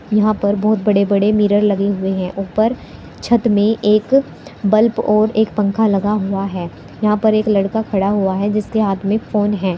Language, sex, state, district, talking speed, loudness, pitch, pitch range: Hindi, female, Uttar Pradesh, Saharanpur, 195 wpm, -16 LUFS, 210 Hz, 200-215 Hz